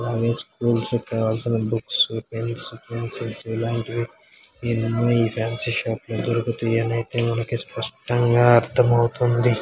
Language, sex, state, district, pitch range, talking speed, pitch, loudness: Telugu, male, Telangana, Karimnagar, 115-120 Hz, 100 wpm, 115 Hz, -21 LUFS